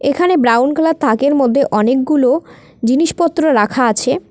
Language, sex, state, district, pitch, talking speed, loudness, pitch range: Bengali, female, West Bengal, Cooch Behar, 275 Hz, 125 wpm, -14 LUFS, 245-315 Hz